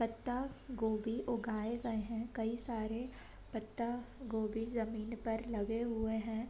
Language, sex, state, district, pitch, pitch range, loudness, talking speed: Hindi, female, Uttar Pradesh, Deoria, 225 Hz, 220-235 Hz, -39 LUFS, 110 wpm